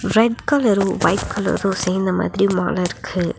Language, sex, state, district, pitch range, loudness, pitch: Tamil, female, Tamil Nadu, Nilgiris, 185-210 Hz, -19 LUFS, 195 Hz